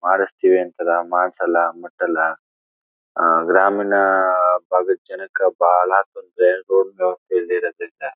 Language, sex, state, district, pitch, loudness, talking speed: Kannada, male, Karnataka, Chamarajanagar, 100 Hz, -18 LUFS, 125 wpm